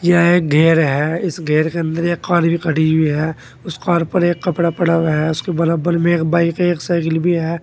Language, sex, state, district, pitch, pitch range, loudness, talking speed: Hindi, male, Uttar Pradesh, Saharanpur, 170 Hz, 160-175 Hz, -16 LUFS, 245 wpm